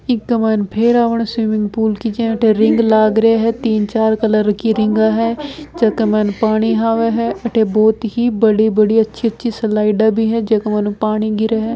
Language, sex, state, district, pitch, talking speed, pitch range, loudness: Hindi, female, Rajasthan, Nagaur, 220 Hz, 200 wpm, 215-230 Hz, -15 LUFS